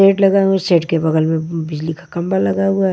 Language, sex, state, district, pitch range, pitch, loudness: Hindi, female, Maharashtra, Washim, 160-195 Hz, 175 Hz, -16 LUFS